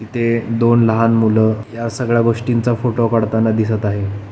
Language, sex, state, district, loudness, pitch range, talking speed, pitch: Marathi, male, Maharashtra, Pune, -16 LUFS, 110-115 Hz, 150 wpm, 115 Hz